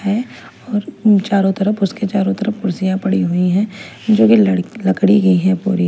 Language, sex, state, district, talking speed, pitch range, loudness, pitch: Hindi, female, Bihar, West Champaran, 185 wpm, 190-210 Hz, -15 LUFS, 200 Hz